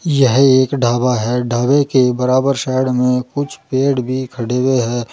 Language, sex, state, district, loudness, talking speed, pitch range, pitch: Hindi, male, Uttar Pradesh, Saharanpur, -15 LUFS, 175 wpm, 125-135 Hz, 130 Hz